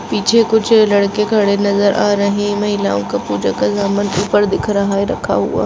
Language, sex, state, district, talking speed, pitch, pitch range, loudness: Hindi, female, Goa, North and South Goa, 190 wpm, 200 Hz, 195-210 Hz, -15 LUFS